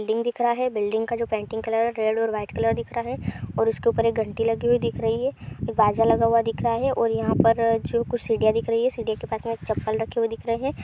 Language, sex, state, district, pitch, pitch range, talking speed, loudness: Hindi, female, Bihar, Supaul, 230 Hz, 225-235 Hz, 295 wpm, -24 LUFS